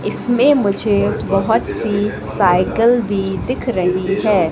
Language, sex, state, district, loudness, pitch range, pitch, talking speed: Hindi, female, Madhya Pradesh, Katni, -16 LUFS, 195-225 Hz, 205 Hz, 120 wpm